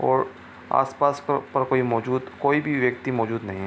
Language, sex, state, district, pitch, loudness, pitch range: Hindi, male, Bihar, Supaul, 130 Hz, -24 LUFS, 115-140 Hz